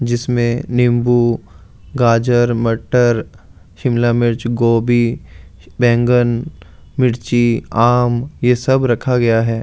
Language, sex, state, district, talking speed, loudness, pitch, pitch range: Hindi, male, Delhi, New Delhi, 95 wpm, -15 LUFS, 120 Hz, 115-120 Hz